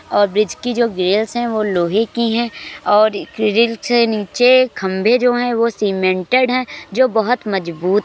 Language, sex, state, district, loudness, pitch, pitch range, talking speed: Hindi, male, Uttar Pradesh, Jyotiba Phule Nagar, -16 LUFS, 225 Hz, 205-245 Hz, 165 wpm